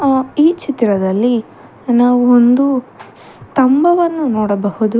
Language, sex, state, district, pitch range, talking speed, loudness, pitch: Kannada, female, Karnataka, Bangalore, 225-280 Hz, 85 wpm, -13 LUFS, 245 Hz